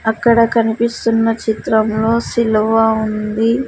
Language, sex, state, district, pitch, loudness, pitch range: Telugu, female, Andhra Pradesh, Sri Satya Sai, 225 Hz, -15 LUFS, 220-230 Hz